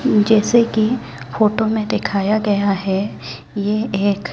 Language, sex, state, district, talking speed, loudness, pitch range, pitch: Hindi, male, Chhattisgarh, Raipur, 125 wpm, -18 LUFS, 200-220 Hz, 210 Hz